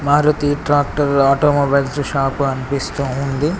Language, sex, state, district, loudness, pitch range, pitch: Telugu, male, Telangana, Mahabubabad, -17 LUFS, 135-145 Hz, 140 Hz